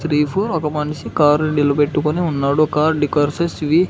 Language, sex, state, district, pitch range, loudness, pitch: Telugu, male, Andhra Pradesh, Sri Satya Sai, 145-160 Hz, -17 LUFS, 150 Hz